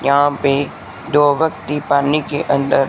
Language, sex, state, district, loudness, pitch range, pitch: Hindi, male, Rajasthan, Bikaner, -17 LUFS, 140-150 Hz, 145 Hz